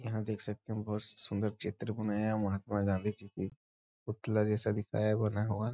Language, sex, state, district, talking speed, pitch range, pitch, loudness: Hindi, male, Bihar, East Champaran, 190 wpm, 105-110 Hz, 105 Hz, -35 LUFS